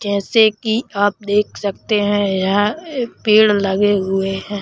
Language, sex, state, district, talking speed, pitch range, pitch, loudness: Hindi, male, Madhya Pradesh, Bhopal, 155 wpm, 200-215 Hz, 205 Hz, -17 LUFS